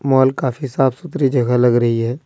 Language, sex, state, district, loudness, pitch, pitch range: Hindi, male, Jharkhand, Deoghar, -17 LUFS, 130 Hz, 120-135 Hz